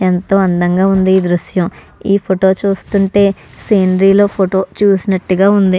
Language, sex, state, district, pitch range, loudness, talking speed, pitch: Telugu, female, Andhra Pradesh, Krishna, 185-200 Hz, -13 LUFS, 125 wpm, 190 Hz